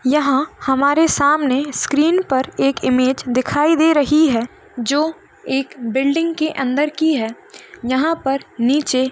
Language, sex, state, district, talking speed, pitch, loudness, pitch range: Hindi, female, Uttar Pradesh, Hamirpur, 145 wpm, 280 Hz, -17 LUFS, 260-310 Hz